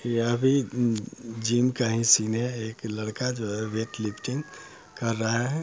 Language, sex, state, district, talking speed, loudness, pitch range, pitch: Hindi, male, Bihar, Muzaffarpur, 170 wpm, -26 LUFS, 110-125 Hz, 115 Hz